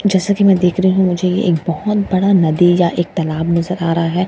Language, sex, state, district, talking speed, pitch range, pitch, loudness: Hindi, female, Bihar, Katihar, 265 wpm, 170-190 Hz, 180 Hz, -15 LUFS